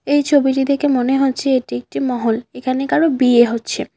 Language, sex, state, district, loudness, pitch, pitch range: Bengali, female, West Bengal, Cooch Behar, -16 LUFS, 265 Hz, 245-275 Hz